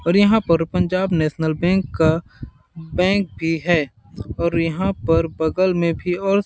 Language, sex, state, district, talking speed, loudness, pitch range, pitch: Hindi, male, Chhattisgarh, Balrampur, 160 wpm, -19 LUFS, 160-185 Hz, 170 Hz